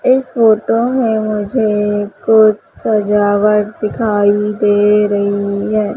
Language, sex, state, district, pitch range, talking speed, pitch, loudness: Hindi, female, Madhya Pradesh, Umaria, 205-220 Hz, 100 wpm, 210 Hz, -13 LUFS